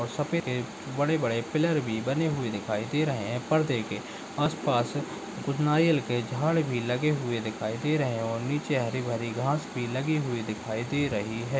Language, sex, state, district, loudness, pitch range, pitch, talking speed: Hindi, male, Chhattisgarh, Balrampur, -29 LUFS, 115-150 Hz, 125 Hz, 195 wpm